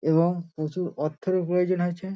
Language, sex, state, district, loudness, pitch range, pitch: Bengali, male, West Bengal, Dakshin Dinajpur, -26 LUFS, 160-185 Hz, 175 Hz